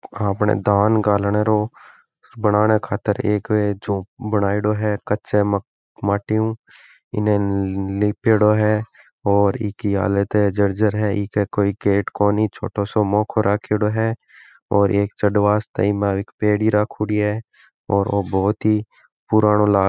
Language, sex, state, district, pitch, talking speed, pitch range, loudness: Marwari, male, Rajasthan, Nagaur, 105 Hz, 150 wpm, 100-105 Hz, -20 LUFS